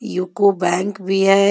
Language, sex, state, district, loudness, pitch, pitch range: Hindi, female, Jharkhand, Ranchi, -17 LUFS, 195 Hz, 185-200 Hz